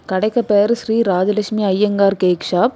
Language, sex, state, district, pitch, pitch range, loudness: Tamil, female, Tamil Nadu, Kanyakumari, 205 Hz, 190-215 Hz, -16 LUFS